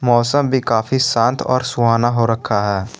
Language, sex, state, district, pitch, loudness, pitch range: Hindi, male, Jharkhand, Garhwa, 120 Hz, -16 LUFS, 115-130 Hz